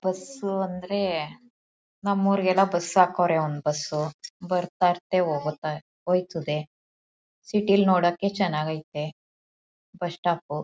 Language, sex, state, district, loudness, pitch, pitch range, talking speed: Kannada, female, Karnataka, Mysore, -25 LUFS, 180 Hz, 155-195 Hz, 95 wpm